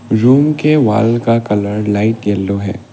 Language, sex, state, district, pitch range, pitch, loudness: Hindi, male, Assam, Kamrup Metropolitan, 105-120 Hz, 110 Hz, -13 LUFS